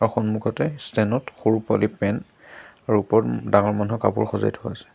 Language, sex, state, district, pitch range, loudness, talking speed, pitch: Assamese, male, Assam, Sonitpur, 105-115 Hz, -22 LUFS, 170 wpm, 110 Hz